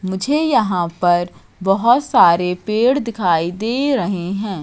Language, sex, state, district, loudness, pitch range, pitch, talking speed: Hindi, female, Madhya Pradesh, Katni, -17 LUFS, 180-240 Hz, 195 Hz, 130 wpm